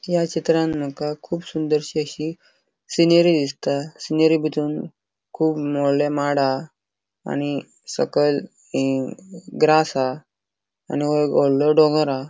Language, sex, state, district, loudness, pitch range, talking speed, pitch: Konkani, male, Goa, North and South Goa, -21 LUFS, 135-155 Hz, 120 wpm, 150 Hz